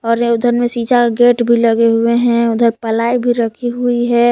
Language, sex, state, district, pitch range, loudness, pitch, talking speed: Hindi, female, Jharkhand, Palamu, 230-240 Hz, -13 LUFS, 235 Hz, 235 wpm